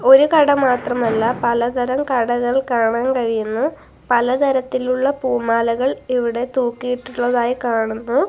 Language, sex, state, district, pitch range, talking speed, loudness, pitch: Malayalam, female, Kerala, Kasaragod, 235-260 Hz, 95 wpm, -18 LUFS, 245 Hz